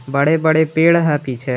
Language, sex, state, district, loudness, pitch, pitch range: Hindi, male, Jharkhand, Garhwa, -15 LUFS, 150 Hz, 135-160 Hz